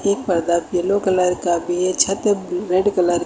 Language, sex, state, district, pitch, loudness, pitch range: Hindi, female, Uttar Pradesh, Lucknow, 180 Hz, -19 LUFS, 175-195 Hz